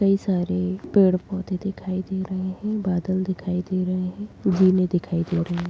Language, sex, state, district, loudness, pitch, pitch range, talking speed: Kumaoni, female, Uttarakhand, Tehri Garhwal, -24 LUFS, 185 Hz, 180-190 Hz, 190 wpm